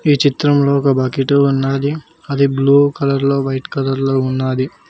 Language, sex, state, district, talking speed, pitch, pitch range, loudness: Telugu, male, Telangana, Mahabubabad, 160 wpm, 140 Hz, 135-140 Hz, -15 LUFS